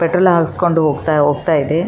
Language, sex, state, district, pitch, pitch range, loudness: Kannada, female, Karnataka, Raichur, 165 Hz, 150-170 Hz, -15 LUFS